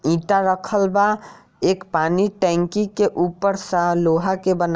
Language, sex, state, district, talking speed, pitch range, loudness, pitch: Bhojpuri, male, Bihar, Saran, 165 wpm, 175-200 Hz, -20 LUFS, 185 Hz